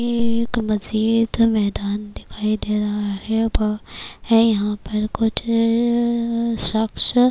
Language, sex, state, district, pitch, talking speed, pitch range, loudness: Urdu, female, Bihar, Kishanganj, 225 Hz, 90 wpm, 210-230 Hz, -20 LUFS